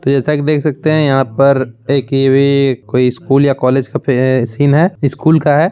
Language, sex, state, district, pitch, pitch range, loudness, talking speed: Hindi, male, Bihar, Begusarai, 140 Hz, 130-150 Hz, -12 LUFS, 210 wpm